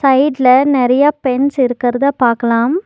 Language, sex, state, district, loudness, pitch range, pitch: Tamil, female, Tamil Nadu, Nilgiris, -13 LUFS, 245-280 Hz, 260 Hz